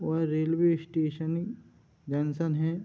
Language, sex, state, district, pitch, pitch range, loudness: Hindi, male, Bihar, Sitamarhi, 160 Hz, 155-165 Hz, -29 LUFS